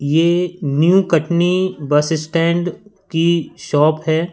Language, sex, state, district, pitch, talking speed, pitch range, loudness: Hindi, male, Madhya Pradesh, Katni, 165 Hz, 110 wpm, 155-180 Hz, -17 LUFS